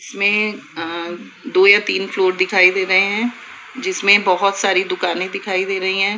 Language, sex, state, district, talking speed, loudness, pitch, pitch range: Hindi, female, Rajasthan, Jaipur, 175 wpm, -16 LUFS, 195 Hz, 185-200 Hz